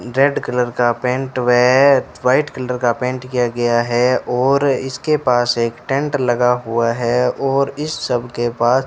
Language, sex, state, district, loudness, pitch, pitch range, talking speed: Hindi, male, Rajasthan, Bikaner, -17 LUFS, 125 Hz, 120-135 Hz, 185 wpm